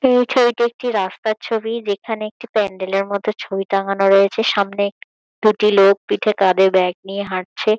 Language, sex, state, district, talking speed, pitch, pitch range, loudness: Bengali, female, West Bengal, Kolkata, 160 wpm, 200 Hz, 195-220 Hz, -18 LUFS